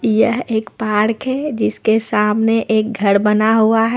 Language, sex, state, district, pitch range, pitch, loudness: Hindi, female, Jharkhand, Ranchi, 210-225 Hz, 220 Hz, -16 LUFS